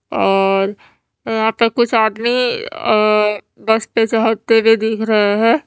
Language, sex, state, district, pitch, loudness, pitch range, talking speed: Hindi, female, Haryana, Charkhi Dadri, 220 Hz, -15 LUFS, 210-225 Hz, 135 wpm